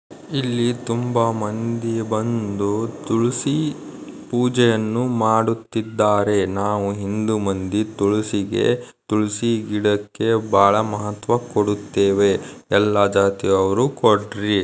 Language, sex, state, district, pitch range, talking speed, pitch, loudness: Kannada, male, Karnataka, Dharwad, 100-115 Hz, 75 wpm, 110 Hz, -20 LUFS